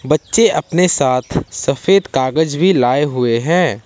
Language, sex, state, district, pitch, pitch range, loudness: Hindi, male, Jharkhand, Ranchi, 150 Hz, 130-175 Hz, -15 LUFS